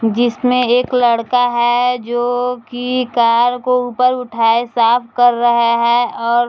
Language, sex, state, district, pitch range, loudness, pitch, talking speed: Hindi, female, Bihar, Jahanabad, 235-250 Hz, -14 LUFS, 240 Hz, 150 wpm